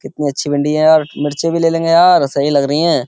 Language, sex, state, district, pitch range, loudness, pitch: Hindi, male, Uttar Pradesh, Jyotiba Phule Nagar, 145-165 Hz, -13 LUFS, 150 Hz